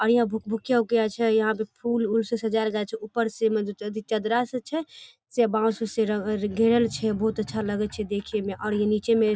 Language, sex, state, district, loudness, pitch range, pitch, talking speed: Maithili, female, Bihar, Darbhanga, -25 LUFS, 215-230 Hz, 220 Hz, 235 wpm